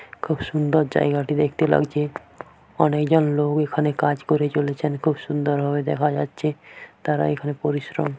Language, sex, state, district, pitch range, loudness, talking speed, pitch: Bengali, female, West Bengal, Paschim Medinipur, 145-150 Hz, -22 LUFS, 145 wpm, 150 Hz